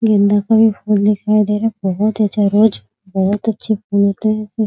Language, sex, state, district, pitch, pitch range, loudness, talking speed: Hindi, female, Bihar, Muzaffarpur, 210 Hz, 200-220 Hz, -15 LUFS, 230 wpm